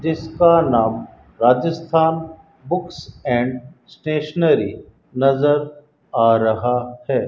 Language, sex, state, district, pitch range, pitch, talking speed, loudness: Hindi, male, Rajasthan, Bikaner, 125-160 Hz, 145 Hz, 80 wpm, -18 LUFS